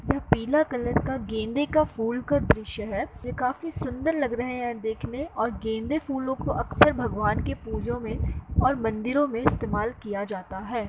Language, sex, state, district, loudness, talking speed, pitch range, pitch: Hindi, female, Uttar Pradesh, Muzaffarnagar, -27 LUFS, 185 wpm, 220-280 Hz, 240 Hz